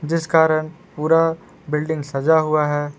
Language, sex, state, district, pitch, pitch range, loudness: Hindi, male, Jharkhand, Palamu, 155 Hz, 150-160 Hz, -19 LUFS